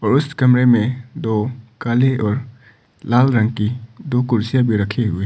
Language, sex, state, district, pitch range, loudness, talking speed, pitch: Hindi, male, Arunachal Pradesh, Papum Pare, 110-125 Hz, -18 LUFS, 170 wpm, 120 Hz